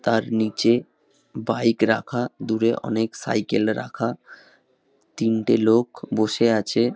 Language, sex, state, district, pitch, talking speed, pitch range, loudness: Bengali, male, West Bengal, Dakshin Dinajpur, 115 Hz, 110 wpm, 110-115 Hz, -22 LUFS